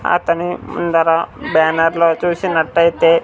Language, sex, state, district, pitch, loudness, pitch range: Telugu, male, Andhra Pradesh, Sri Satya Sai, 170 Hz, -15 LUFS, 165-175 Hz